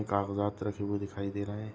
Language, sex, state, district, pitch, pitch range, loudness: Hindi, male, Maharashtra, Sindhudurg, 100 Hz, 100-105 Hz, -34 LUFS